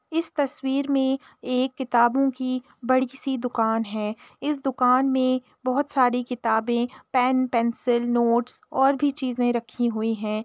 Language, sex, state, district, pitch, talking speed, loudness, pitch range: Hindi, female, Uttar Pradesh, Etah, 255 Hz, 145 wpm, -24 LUFS, 240-265 Hz